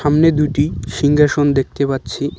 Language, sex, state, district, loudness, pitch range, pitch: Bengali, male, West Bengal, Cooch Behar, -16 LUFS, 140-150 Hz, 145 Hz